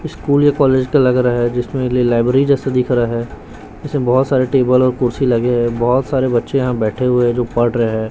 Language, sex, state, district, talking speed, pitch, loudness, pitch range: Hindi, male, Chhattisgarh, Raipur, 235 wpm, 125 Hz, -15 LUFS, 120-130 Hz